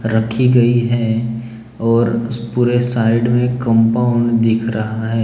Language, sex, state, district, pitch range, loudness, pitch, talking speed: Hindi, male, Maharashtra, Gondia, 115-120 Hz, -15 LUFS, 115 Hz, 125 wpm